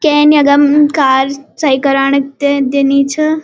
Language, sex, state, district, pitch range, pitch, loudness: Garhwali, female, Uttarakhand, Uttarkashi, 275-295 Hz, 280 Hz, -11 LUFS